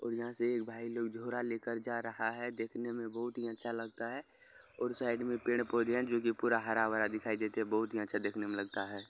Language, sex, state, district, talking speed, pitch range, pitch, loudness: Bhojpuri, male, Bihar, Saran, 270 wpm, 110-120 Hz, 115 Hz, -36 LUFS